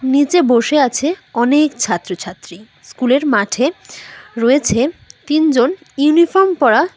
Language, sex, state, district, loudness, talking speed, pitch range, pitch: Bengali, female, West Bengal, Cooch Behar, -14 LUFS, 120 wpm, 235-310 Hz, 270 Hz